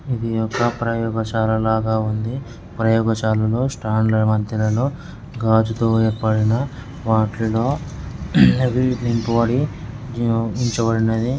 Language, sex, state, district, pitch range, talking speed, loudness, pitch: Telugu, male, Andhra Pradesh, Guntur, 110-120 Hz, 70 wpm, -19 LUFS, 115 Hz